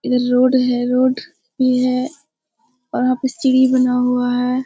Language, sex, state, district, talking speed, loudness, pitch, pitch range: Hindi, female, Bihar, Jamui, 165 wpm, -16 LUFS, 255 Hz, 250-260 Hz